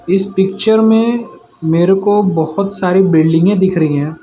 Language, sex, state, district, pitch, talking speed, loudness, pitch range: Hindi, male, Gujarat, Valsad, 190 Hz, 155 wpm, -13 LUFS, 165-200 Hz